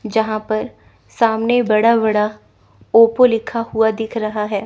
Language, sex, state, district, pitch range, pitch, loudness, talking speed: Hindi, female, Chandigarh, Chandigarh, 215-230 Hz, 220 Hz, -16 LUFS, 140 wpm